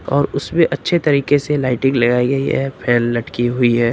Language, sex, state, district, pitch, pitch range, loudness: Hindi, male, Uttar Pradesh, Lucknow, 135 Hz, 120-140 Hz, -16 LUFS